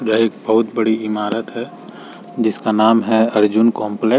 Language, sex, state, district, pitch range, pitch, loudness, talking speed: Hindi, male, Uttar Pradesh, Varanasi, 110-115 Hz, 110 Hz, -17 LUFS, 170 wpm